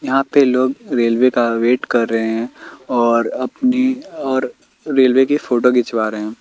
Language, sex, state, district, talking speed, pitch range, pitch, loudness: Hindi, male, Bihar, Kaimur, 160 wpm, 115-135 Hz, 125 Hz, -16 LUFS